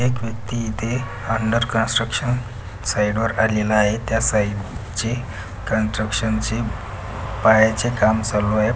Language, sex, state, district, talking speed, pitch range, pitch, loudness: Marathi, male, Maharashtra, Pune, 115 wpm, 105-115 Hz, 110 Hz, -21 LUFS